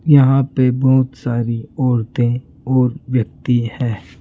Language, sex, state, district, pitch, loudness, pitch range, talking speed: Hindi, male, Rajasthan, Jaipur, 125 Hz, -17 LUFS, 120-130 Hz, 115 wpm